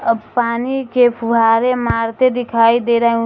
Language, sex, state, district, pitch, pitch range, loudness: Hindi, female, Bihar, Jahanabad, 235 Hz, 230-245 Hz, -15 LUFS